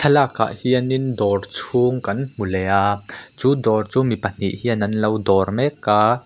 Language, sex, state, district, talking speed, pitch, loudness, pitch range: Mizo, male, Mizoram, Aizawl, 190 wpm, 110 Hz, -20 LUFS, 100-130 Hz